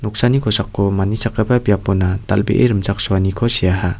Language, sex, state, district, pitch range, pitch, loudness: Garo, male, Meghalaya, West Garo Hills, 95-115 Hz, 105 Hz, -16 LUFS